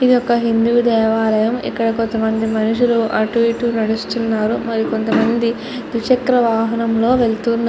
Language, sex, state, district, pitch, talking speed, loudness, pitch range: Telugu, female, Andhra Pradesh, Chittoor, 230 Hz, 125 wpm, -17 LUFS, 225-235 Hz